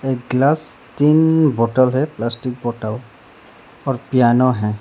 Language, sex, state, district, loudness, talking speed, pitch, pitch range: Hindi, male, Arunachal Pradesh, Lower Dibang Valley, -17 LUFS, 110 wpm, 130 Hz, 120-140 Hz